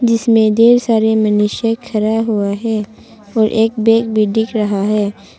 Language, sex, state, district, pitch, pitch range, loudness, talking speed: Hindi, female, Arunachal Pradesh, Papum Pare, 220 Hz, 210-225 Hz, -14 LUFS, 155 wpm